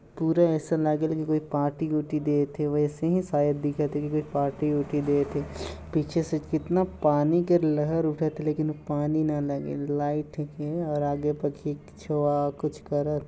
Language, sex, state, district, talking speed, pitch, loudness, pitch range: Chhattisgarhi, male, Chhattisgarh, Jashpur, 185 wpm, 150 Hz, -27 LUFS, 145-155 Hz